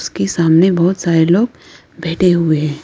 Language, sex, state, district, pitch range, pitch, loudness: Hindi, female, Arunachal Pradesh, Lower Dibang Valley, 155-175 Hz, 165 Hz, -14 LUFS